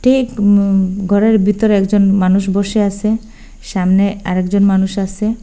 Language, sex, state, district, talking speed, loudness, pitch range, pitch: Bengali, female, Assam, Hailakandi, 130 wpm, -14 LUFS, 195-215 Hz, 200 Hz